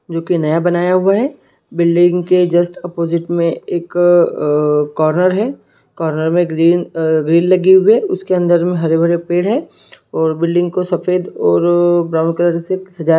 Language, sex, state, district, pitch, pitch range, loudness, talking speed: Hindi, male, Jharkhand, Sahebganj, 175 Hz, 165-180 Hz, -14 LUFS, 175 wpm